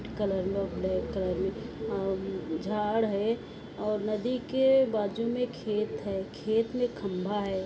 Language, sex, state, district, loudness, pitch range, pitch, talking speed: Hindi, female, Maharashtra, Solapur, -30 LUFS, 195-225 Hz, 210 Hz, 140 wpm